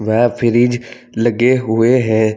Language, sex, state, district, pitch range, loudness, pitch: Hindi, male, Uttar Pradesh, Saharanpur, 110-120 Hz, -14 LUFS, 120 Hz